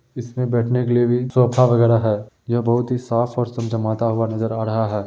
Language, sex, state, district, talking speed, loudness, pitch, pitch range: Hindi, male, Uttar Pradesh, Muzaffarnagar, 225 wpm, -19 LUFS, 120 Hz, 110-125 Hz